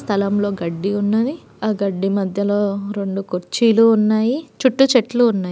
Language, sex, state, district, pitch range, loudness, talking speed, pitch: Telugu, female, Andhra Pradesh, Guntur, 200-230 Hz, -18 LUFS, 130 wpm, 205 Hz